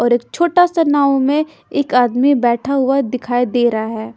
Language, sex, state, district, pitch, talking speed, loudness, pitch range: Hindi, female, Punjab, Pathankot, 265 Hz, 200 wpm, -15 LUFS, 240-285 Hz